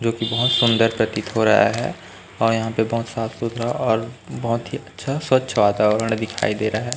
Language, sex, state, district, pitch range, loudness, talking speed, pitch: Hindi, male, Chhattisgarh, Raipur, 110-115 Hz, -20 LUFS, 200 wpm, 115 Hz